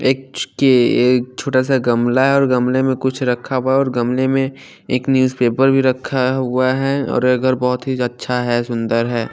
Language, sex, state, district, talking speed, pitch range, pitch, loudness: Hindi, female, Haryana, Charkhi Dadri, 195 wpm, 125-130 Hz, 130 Hz, -17 LUFS